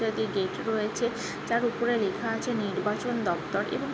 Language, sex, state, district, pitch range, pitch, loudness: Bengali, female, West Bengal, Jhargram, 210-235 Hz, 220 Hz, -29 LUFS